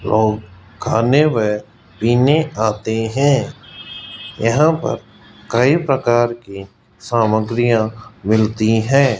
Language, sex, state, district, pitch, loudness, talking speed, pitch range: Hindi, male, Rajasthan, Jaipur, 110 Hz, -17 LUFS, 90 wpm, 110-120 Hz